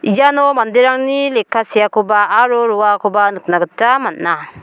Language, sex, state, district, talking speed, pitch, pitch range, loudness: Garo, female, Meghalaya, South Garo Hills, 115 wpm, 225 Hz, 210-260 Hz, -13 LUFS